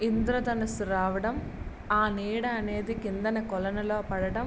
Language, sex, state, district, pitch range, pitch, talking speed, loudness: Telugu, female, Andhra Pradesh, Srikakulam, 205-225 Hz, 215 Hz, 135 wpm, -30 LUFS